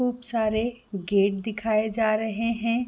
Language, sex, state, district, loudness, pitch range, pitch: Hindi, female, Chhattisgarh, Raigarh, -25 LUFS, 215-230 Hz, 220 Hz